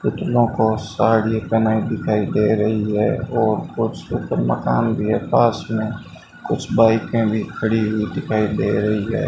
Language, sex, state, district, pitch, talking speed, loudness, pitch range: Hindi, male, Rajasthan, Bikaner, 110 Hz, 150 wpm, -19 LUFS, 105-115 Hz